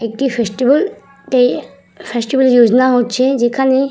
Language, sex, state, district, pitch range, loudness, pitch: Bengali, female, West Bengal, Purulia, 240-270 Hz, -14 LUFS, 255 Hz